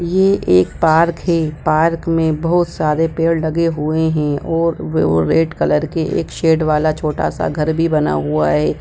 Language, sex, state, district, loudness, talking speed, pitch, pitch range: Hindi, female, Bihar, Sitamarhi, -16 LUFS, 205 wpm, 160 Hz, 150-165 Hz